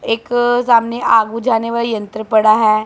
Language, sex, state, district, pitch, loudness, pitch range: Hindi, female, Punjab, Pathankot, 225 Hz, -14 LUFS, 220-235 Hz